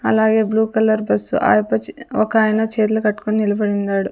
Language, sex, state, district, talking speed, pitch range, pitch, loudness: Telugu, female, Andhra Pradesh, Sri Satya Sai, 145 wpm, 200-220 Hz, 215 Hz, -17 LUFS